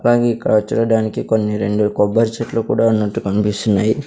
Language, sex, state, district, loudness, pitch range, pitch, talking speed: Telugu, male, Andhra Pradesh, Sri Satya Sai, -17 LUFS, 105-115 Hz, 110 Hz, 145 wpm